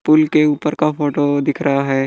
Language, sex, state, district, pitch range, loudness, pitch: Hindi, male, Bihar, West Champaran, 140-155 Hz, -16 LUFS, 150 Hz